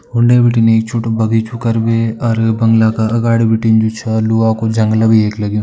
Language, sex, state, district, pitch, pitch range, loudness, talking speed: Hindi, male, Uttarakhand, Tehri Garhwal, 115 Hz, 110-115 Hz, -13 LUFS, 225 wpm